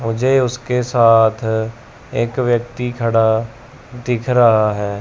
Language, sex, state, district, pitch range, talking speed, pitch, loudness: Hindi, male, Chandigarh, Chandigarh, 110-125 Hz, 110 wpm, 115 Hz, -16 LUFS